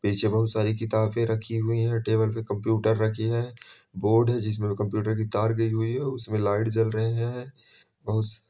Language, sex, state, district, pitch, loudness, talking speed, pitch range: Hindi, male, Bihar, Bhagalpur, 110 Hz, -26 LUFS, 205 wpm, 110-115 Hz